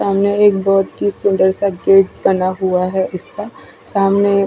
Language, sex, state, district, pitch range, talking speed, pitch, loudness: Hindi, female, Odisha, Khordha, 190-200 Hz, 175 wpm, 195 Hz, -15 LUFS